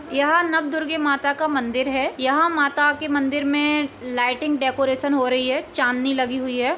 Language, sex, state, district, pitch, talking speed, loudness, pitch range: Hindi, female, Uttar Pradesh, Etah, 280 Hz, 185 wpm, -21 LUFS, 260-300 Hz